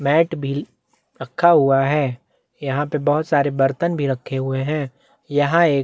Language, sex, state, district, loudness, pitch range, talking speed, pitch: Hindi, male, Chhattisgarh, Bastar, -19 LUFS, 135-155 Hz, 165 wpm, 145 Hz